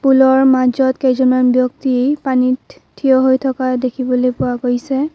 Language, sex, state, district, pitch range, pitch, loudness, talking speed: Assamese, female, Assam, Kamrup Metropolitan, 255-265 Hz, 260 Hz, -15 LUFS, 130 wpm